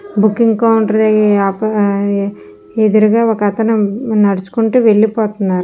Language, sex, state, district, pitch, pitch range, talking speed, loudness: Telugu, female, Andhra Pradesh, Srikakulam, 215 Hz, 205-225 Hz, 65 wpm, -13 LUFS